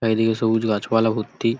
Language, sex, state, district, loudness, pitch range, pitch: Bengali, male, West Bengal, Paschim Medinipur, -21 LUFS, 110-115 Hz, 110 Hz